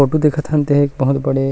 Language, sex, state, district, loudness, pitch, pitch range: Chhattisgarhi, male, Chhattisgarh, Rajnandgaon, -16 LUFS, 145 Hz, 135-150 Hz